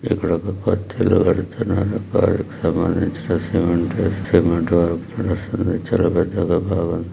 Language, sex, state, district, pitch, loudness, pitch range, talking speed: Telugu, male, Andhra Pradesh, Krishna, 90 Hz, -20 LUFS, 85-100 Hz, 110 wpm